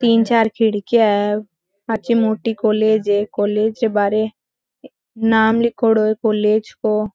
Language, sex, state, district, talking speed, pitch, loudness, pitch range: Marwari, female, Rajasthan, Nagaur, 135 wpm, 220 Hz, -17 LUFS, 210-225 Hz